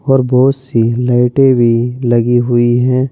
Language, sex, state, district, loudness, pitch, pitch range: Hindi, male, Uttar Pradesh, Saharanpur, -12 LUFS, 125 Hz, 120-130 Hz